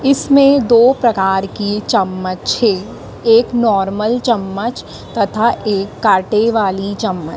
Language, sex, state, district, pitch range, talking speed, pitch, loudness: Hindi, female, Madhya Pradesh, Dhar, 195-235 Hz, 115 wpm, 215 Hz, -14 LUFS